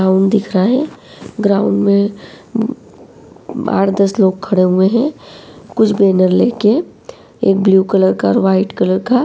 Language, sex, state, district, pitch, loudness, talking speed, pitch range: Hindi, female, Uttar Pradesh, Varanasi, 200 Hz, -14 LUFS, 155 wpm, 190-220 Hz